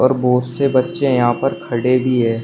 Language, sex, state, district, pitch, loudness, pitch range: Hindi, male, Uttar Pradesh, Shamli, 125 Hz, -17 LUFS, 120-135 Hz